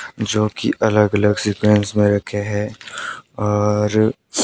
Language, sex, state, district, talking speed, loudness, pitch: Hindi, male, Himachal Pradesh, Shimla, 120 wpm, -18 LUFS, 105 Hz